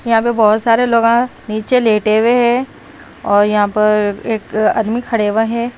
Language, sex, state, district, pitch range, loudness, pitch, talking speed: Hindi, female, Haryana, Rohtak, 215-235 Hz, -14 LUFS, 225 Hz, 175 wpm